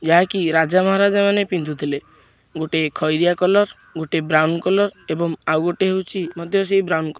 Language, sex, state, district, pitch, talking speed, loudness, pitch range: Odia, male, Odisha, Khordha, 170 Hz, 175 wpm, -19 LUFS, 160-190 Hz